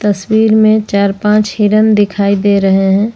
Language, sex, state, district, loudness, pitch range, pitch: Hindi, female, Jharkhand, Ranchi, -11 LUFS, 200-215 Hz, 205 Hz